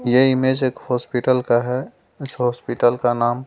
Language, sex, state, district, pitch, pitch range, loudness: Hindi, male, Delhi, New Delhi, 125 Hz, 120-130 Hz, -19 LUFS